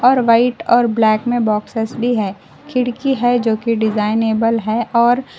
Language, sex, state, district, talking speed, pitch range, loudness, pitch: Hindi, female, Karnataka, Koppal, 165 wpm, 220-245 Hz, -16 LUFS, 230 Hz